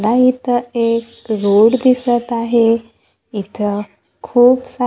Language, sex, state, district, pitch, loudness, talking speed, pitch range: Marathi, female, Maharashtra, Gondia, 235 Hz, -15 LUFS, 110 wpm, 225-245 Hz